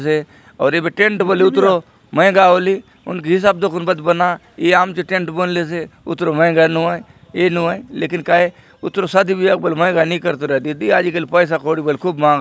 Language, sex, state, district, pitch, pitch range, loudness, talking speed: Halbi, male, Chhattisgarh, Bastar, 175 Hz, 165-185 Hz, -16 LUFS, 150 wpm